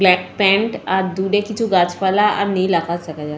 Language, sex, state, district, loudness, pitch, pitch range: Bengali, female, West Bengal, Jalpaiguri, -17 LUFS, 190 Hz, 175-205 Hz